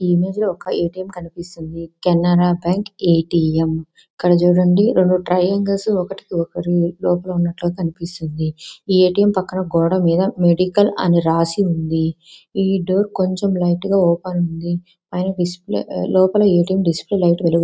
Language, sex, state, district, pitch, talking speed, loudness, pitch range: Telugu, female, Andhra Pradesh, Visakhapatnam, 175 Hz, 120 wpm, -18 LUFS, 170-185 Hz